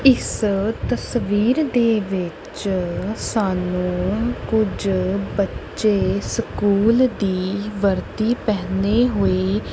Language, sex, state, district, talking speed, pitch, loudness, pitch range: Punjabi, male, Punjab, Kapurthala, 75 wpm, 200 Hz, -20 LUFS, 190-225 Hz